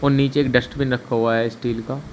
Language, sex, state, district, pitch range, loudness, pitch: Hindi, male, Uttar Pradesh, Shamli, 115-140 Hz, -21 LUFS, 125 Hz